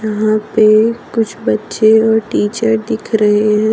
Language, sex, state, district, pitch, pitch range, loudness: Hindi, female, Jharkhand, Deoghar, 220 Hz, 215-225 Hz, -13 LUFS